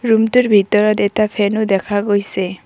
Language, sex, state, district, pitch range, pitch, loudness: Assamese, female, Assam, Kamrup Metropolitan, 200-215 Hz, 205 Hz, -15 LUFS